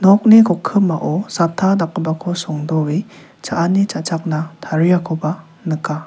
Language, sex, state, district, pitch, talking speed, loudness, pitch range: Garo, male, Meghalaya, South Garo Hills, 170 Hz, 90 wpm, -17 LUFS, 160-190 Hz